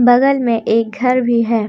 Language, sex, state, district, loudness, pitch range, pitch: Hindi, female, Jharkhand, Deoghar, -15 LUFS, 230-250 Hz, 235 Hz